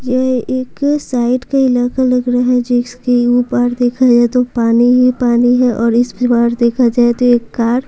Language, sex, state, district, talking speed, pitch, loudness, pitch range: Hindi, female, Bihar, Patna, 200 wpm, 245 Hz, -13 LUFS, 240-250 Hz